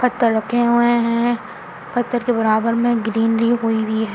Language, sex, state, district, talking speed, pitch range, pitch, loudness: Hindi, female, Delhi, New Delhi, 175 wpm, 225-240 Hz, 235 Hz, -18 LUFS